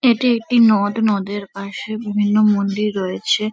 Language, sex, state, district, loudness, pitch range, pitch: Bengali, female, West Bengal, Kolkata, -18 LUFS, 200-220 Hz, 210 Hz